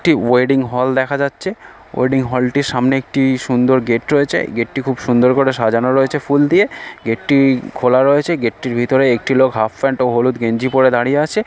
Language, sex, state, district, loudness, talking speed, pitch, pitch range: Bengali, female, West Bengal, North 24 Parganas, -15 LUFS, 215 wpm, 130 Hz, 125-135 Hz